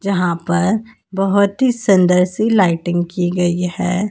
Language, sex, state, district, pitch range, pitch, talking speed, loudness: Hindi, female, Madhya Pradesh, Dhar, 180-200 Hz, 185 Hz, 145 wpm, -16 LUFS